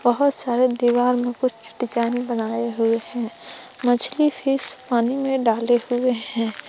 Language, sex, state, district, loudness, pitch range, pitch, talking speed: Hindi, female, Jharkhand, Palamu, -20 LUFS, 235-255 Hz, 245 Hz, 145 wpm